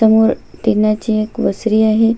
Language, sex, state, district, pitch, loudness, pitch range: Marathi, female, Maharashtra, Sindhudurg, 220 Hz, -15 LUFS, 215-225 Hz